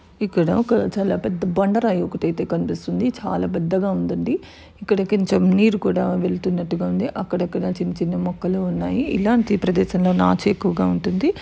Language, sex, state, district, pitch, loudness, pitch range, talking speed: Telugu, female, Telangana, Nalgonda, 185 Hz, -21 LUFS, 180-205 Hz, 160 wpm